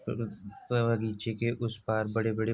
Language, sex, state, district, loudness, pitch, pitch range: Hindi, male, Uttar Pradesh, Jalaun, -32 LUFS, 115 Hz, 110-115 Hz